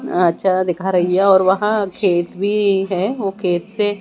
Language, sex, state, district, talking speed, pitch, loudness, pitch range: Hindi, female, Odisha, Malkangiri, 180 wpm, 190 Hz, -17 LUFS, 180-200 Hz